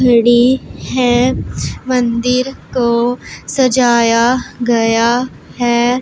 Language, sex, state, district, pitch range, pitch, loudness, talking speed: Hindi, female, Punjab, Pathankot, 235-255 Hz, 245 Hz, -14 LUFS, 70 wpm